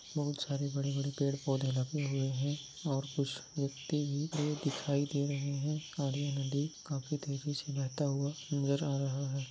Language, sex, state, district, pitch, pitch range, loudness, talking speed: Hindi, male, Maharashtra, Nagpur, 140 Hz, 140-145 Hz, -36 LUFS, 165 wpm